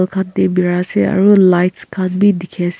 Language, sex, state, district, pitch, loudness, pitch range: Nagamese, female, Nagaland, Kohima, 185 Hz, -14 LUFS, 180-190 Hz